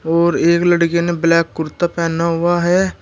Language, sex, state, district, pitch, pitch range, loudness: Hindi, male, Uttar Pradesh, Shamli, 170 Hz, 165-175 Hz, -15 LUFS